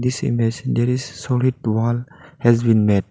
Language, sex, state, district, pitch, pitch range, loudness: English, male, Arunachal Pradesh, Lower Dibang Valley, 120 Hz, 115-125 Hz, -19 LUFS